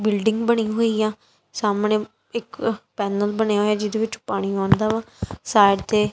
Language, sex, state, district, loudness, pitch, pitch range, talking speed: Punjabi, female, Punjab, Kapurthala, -22 LUFS, 215 Hz, 205-220 Hz, 165 wpm